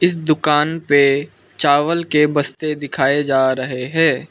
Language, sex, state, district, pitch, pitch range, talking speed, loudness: Hindi, male, Arunachal Pradesh, Lower Dibang Valley, 150 Hz, 140-155 Hz, 140 wpm, -16 LUFS